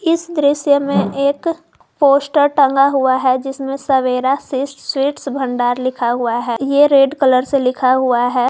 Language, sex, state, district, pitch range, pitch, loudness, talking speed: Hindi, female, Jharkhand, Garhwa, 255-285 Hz, 270 Hz, -15 LUFS, 160 wpm